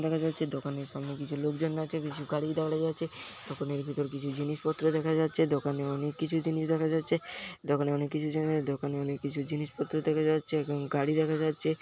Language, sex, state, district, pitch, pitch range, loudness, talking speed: Bengali, male, West Bengal, Paschim Medinipur, 150 Hz, 145-160 Hz, -31 LUFS, 195 wpm